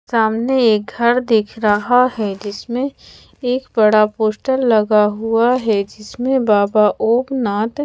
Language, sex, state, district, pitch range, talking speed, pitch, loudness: Hindi, female, Odisha, Khordha, 215-250 Hz, 120 wpm, 225 Hz, -16 LUFS